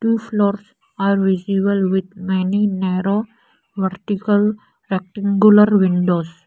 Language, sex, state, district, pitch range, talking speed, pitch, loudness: English, female, Arunachal Pradesh, Lower Dibang Valley, 190-210 Hz, 95 wpm, 200 Hz, -18 LUFS